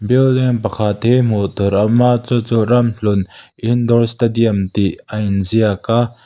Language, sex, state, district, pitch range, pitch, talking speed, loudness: Mizo, male, Mizoram, Aizawl, 105-120 Hz, 115 Hz, 165 wpm, -15 LUFS